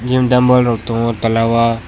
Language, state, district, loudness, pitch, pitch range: Kokborok, Tripura, West Tripura, -14 LUFS, 115 Hz, 115-125 Hz